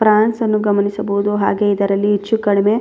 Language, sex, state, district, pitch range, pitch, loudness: Kannada, female, Karnataka, Bellary, 200-215 Hz, 205 Hz, -16 LUFS